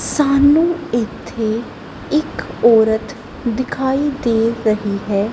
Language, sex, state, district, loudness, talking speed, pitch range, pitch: Punjabi, female, Punjab, Kapurthala, -17 LUFS, 90 wpm, 220-280 Hz, 235 Hz